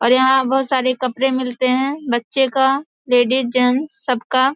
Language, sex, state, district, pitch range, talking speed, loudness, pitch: Hindi, female, Bihar, Samastipur, 255-265 Hz, 160 wpm, -17 LUFS, 260 Hz